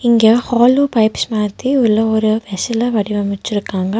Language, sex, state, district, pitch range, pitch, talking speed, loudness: Tamil, female, Tamil Nadu, Nilgiris, 210-235 Hz, 220 Hz, 120 wpm, -15 LUFS